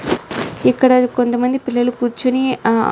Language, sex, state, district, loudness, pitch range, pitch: Telugu, female, Telangana, Nalgonda, -16 LUFS, 240-255 Hz, 250 Hz